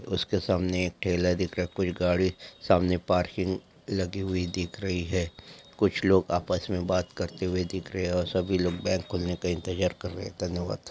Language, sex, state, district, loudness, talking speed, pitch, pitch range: Hindi, male, Andhra Pradesh, Chittoor, -28 LUFS, 210 wpm, 90 Hz, 90-95 Hz